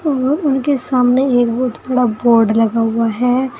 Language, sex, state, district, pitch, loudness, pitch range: Hindi, female, Uttar Pradesh, Saharanpur, 250 Hz, -15 LUFS, 230-265 Hz